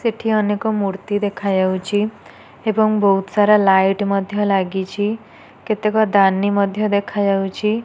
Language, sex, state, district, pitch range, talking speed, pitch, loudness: Odia, female, Odisha, Nuapada, 195-215 Hz, 115 wpm, 205 Hz, -18 LUFS